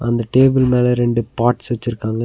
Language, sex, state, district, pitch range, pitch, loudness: Tamil, male, Tamil Nadu, Nilgiris, 120-125 Hz, 120 Hz, -16 LUFS